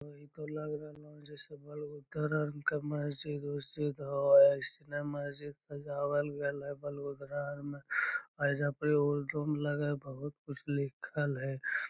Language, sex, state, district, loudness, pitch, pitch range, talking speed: Magahi, male, Bihar, Lakhisarai, -35 LUFS, 145 Hz, 145-150 Hz, 95 wpm